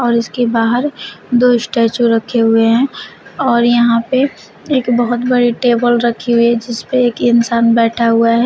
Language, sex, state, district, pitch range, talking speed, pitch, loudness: Hindi, female, Uttar Pradesh, Shamli, 230-245 Hz, 165 wpm, 235 Hz, -13 LUFS